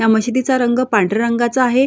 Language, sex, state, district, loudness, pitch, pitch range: Marathi, female, Maharashtra, Solapur, -16 LUFS, 240 Hz, 225-255 Hz